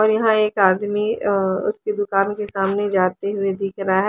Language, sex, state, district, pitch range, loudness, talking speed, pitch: Hindi, female, Haryana, Charkhi Dadri, 195-210 Hz, -20 LUFS, 190 wpm, 200 Hz